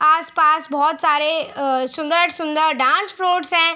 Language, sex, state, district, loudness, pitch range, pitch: Hindi, female, Bihar, Araria, -18 LUFS, 300-335 Hz, 315 Hz